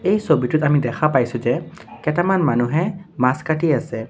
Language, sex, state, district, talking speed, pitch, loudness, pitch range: Assamese, male, Assam, Sonitpur, 160 wpm, 150 Hz, -19 LUFS, 125-165 Hz